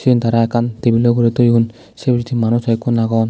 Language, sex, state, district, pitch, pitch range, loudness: Chakma, male, Tripura, Dhalai, 115 Hz, 115-120 Hz, -15 LUFS